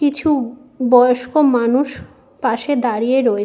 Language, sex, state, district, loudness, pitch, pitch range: Bengali, female, West Bengal, Malda, -16 LUFS, 255 Hz, 245-280 Hz